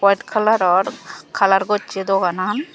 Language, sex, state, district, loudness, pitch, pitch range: Chakma, female, Tripura, Dhalai, -18 LUFS, 200 Hz, 190-215 Hz